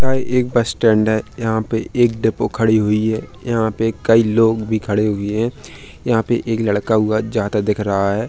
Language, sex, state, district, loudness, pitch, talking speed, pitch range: Hindi, male, Uttar Pradesh, Hamirpur, -17 LUFS, 110 Hz, 205 wpm, 105-115 Hz